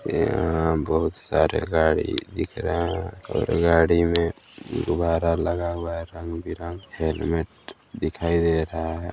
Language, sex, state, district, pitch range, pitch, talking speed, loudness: Hindi, male, Chhattisgarh, Balrampur, 80-85 Hz, 85 Hz, 130 wpm, -24 LUFS